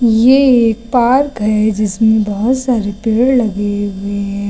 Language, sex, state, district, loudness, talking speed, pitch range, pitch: Hindi, female, Uttar Pradesh, Lucknow, -13 LUFS, 145 wpm, 205-245 Hz, 220 Hz